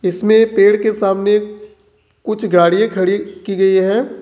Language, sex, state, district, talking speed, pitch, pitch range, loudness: Hindi, male, Jharkhand, Ranchi, 140 wpm, 205 Hz, 195-215 Hz, -14 LUFS